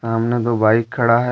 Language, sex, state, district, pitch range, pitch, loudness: Hindi, male, Jharkhand, Deoghar, 115-120 Hz, 115 Hz, -17 LUFS